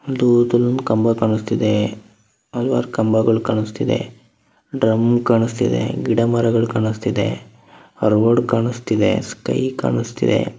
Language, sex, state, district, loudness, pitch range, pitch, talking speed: Kannada, male, Karnataka, Dharwad, -18 LUFS, 110-120 Hz, 115 Hz, 110 wpm